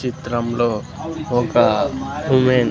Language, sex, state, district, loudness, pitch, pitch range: Telugu, male, Andhra Pradesh, Sri Satya Sai, -19 LUFS, 125 Hz, 120-150 Hz